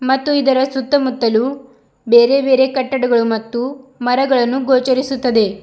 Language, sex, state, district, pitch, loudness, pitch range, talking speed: Kannada, female, Karnataka, Bidar, 260 Hz, -15 LUFS, 240-270 Hz, 95 wpm